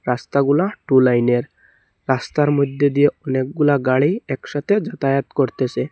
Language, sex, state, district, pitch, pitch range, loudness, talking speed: Bengali, male, Assam, Hailakandi, 140 Hz, 130-145 Hz, -18 LUFS, 110 wpm